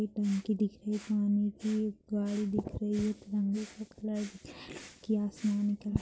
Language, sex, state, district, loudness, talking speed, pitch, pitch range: Hindi, female, Maharashtra, Dhule, -33 LUFS, 80 wpm, 210 Hz, 205-215 Hz